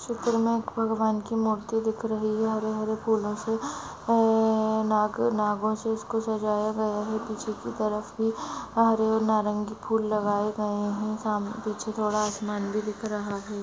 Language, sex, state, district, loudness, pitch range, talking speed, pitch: Hindi, female, Maharashtra, Aurangabad, -27 LUFS, 210-220 Hz, 170 wpm, 215 Hz